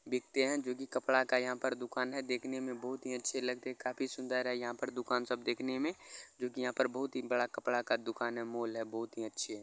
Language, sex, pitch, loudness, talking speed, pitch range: Maithili, male, 125 Hz, -37 LUFS, 260 wpm, 120-130 Hz